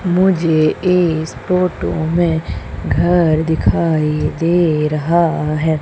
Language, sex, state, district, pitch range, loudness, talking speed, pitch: Hindi, female, Madhya Pradesh, Umaria, 155-175 Hz, -16 LUFS, 95 wpm, 160 Hz